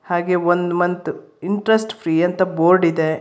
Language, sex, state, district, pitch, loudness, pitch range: Kannada, female, Karnataka, Bangalore, 175 Hz, -18 LUFS, 175-185 Hz